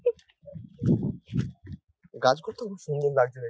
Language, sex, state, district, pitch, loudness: Bengali, male, West Bengal, North 24 Parganas, 145 Hz, -28 LUFS